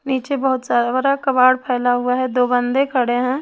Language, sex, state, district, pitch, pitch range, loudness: Hindi, female, Chhattisgarh, Raipur, 255 Hz, 245-265 Hz, -17 LUFS